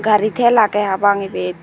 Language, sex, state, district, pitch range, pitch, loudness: Chakma, female, Tripura, Dhalai, 200-215 Hz, 205 Hz, -15 LUFS